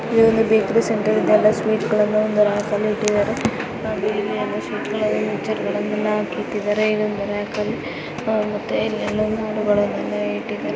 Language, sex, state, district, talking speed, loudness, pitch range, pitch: Kannada, female, Karnataka, Dakshina Kannada, 35 wpm, -20 LUFS, 210-215 Hz, 215 Hz